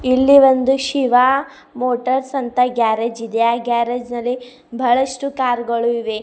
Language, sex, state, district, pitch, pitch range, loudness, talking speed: Kannada, female, Karnataka, Bidar, 250 Hz, 235-265 Hz, -17 LUFS, 125 wpm